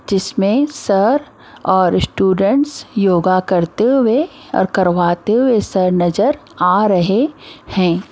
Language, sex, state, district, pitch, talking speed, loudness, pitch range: Hindi, female, Maharashtra, Mumbai Suburban, 195 Hz, 110 wpm, -15 LUFS, 185-255 Hz